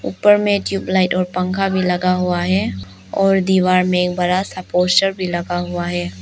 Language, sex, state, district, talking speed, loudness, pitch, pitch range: Hindi, female, Arunachal Pradesh, Lower Dibang Valley, 185 wpm, -17 LUFS, 180 Hz, 180-190 Hz